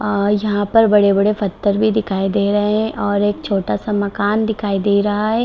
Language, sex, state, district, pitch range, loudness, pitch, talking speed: Hindi, female, Bihar, Madhepura, 200-215 Hz, -17 LUFS, 205 Hz, 200 wpm